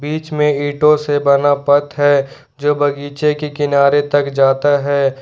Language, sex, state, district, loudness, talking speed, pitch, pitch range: Hindi, male, Jharkhand, Ranchi, -15 LUFS, 160 wpm, 145 Hz, 140-145 Hz